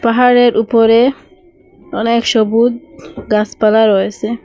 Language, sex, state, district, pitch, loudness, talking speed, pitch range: Bengali, female, Assam, Hailakandi, 230 Hz, -12 LUFS, 95 wpm, 220-245 Hz